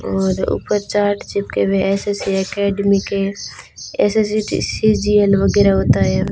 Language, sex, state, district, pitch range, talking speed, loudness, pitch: Hindi, female, Rajasthan, Bikaner, 190-205 Hz, 125 wpm, -17 LUFS, 200 Hz